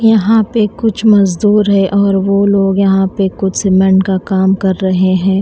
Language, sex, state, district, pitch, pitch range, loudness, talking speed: Hindi, female, Odisha, Nuapada, 195 Hz, 190-205 Hz, -11 LUFS, 190 wpm